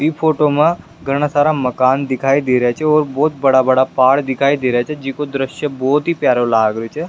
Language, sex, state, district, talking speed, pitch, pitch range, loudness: Rajasthani, male, Rajasthan, Nagaur, 230 wpm, 135 Hz, 130-150 Hz, -15 LUFS